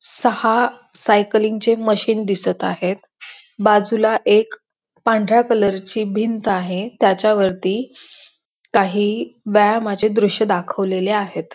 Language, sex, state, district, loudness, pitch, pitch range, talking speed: Marathi, female, Maharashtra, Pune, -18 LUFS, 215 Hz, 200-225 Hz, 105 wpm